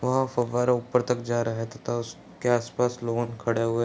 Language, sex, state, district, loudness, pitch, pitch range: Hindi, male, Bihar, Bhagalpur, -27 LUFS, 120 Hz, 115-125 Hz